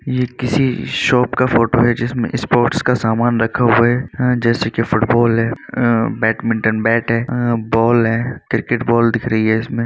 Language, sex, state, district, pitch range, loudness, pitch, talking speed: Hindi, male, Uttar Pradesh, Varanasi, 115-125 Hz, -16 LUFS, 120 Hz, 190 wpm